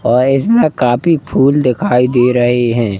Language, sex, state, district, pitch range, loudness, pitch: Hindi, male, Madhya Pradesh, Katni, 120-135 Hz, -12 LUFS, 125 Hz